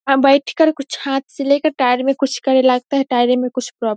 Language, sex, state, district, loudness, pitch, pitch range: Hindi, female, Bihar, Saharsa, -16 LUFS, 270 Hz, 250-275 Hz